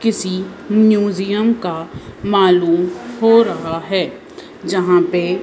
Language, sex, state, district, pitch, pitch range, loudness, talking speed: Hindi, female, Madhya Pradesh, Bhopal, 185 Hz, 180-210 Hz, -16 LUFS, 100 wpm